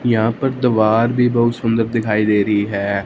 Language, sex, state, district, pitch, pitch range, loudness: Hindi, male, Punjab, Fazilka, 115 Hz, 105-120 Hz, -16 LUFS